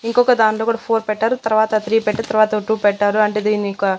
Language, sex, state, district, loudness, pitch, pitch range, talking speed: Telugu, female, Andhra Pradesh, Annamaya, -17 LUFS, 215 Hz, 210-225 Hz, 195 wpm